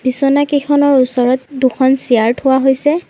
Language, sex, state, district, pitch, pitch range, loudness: Assamese, female, Assam, Sonitpur, 265 Hz, 255-285 Hz, -13 LUFS